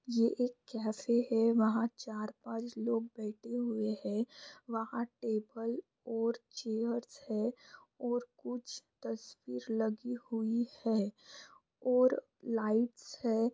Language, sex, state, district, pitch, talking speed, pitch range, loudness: Hindi, female, Bihar, Bhagalpur, 230 Hz, 105 wpm, 220-245 Hz, -36 LUFS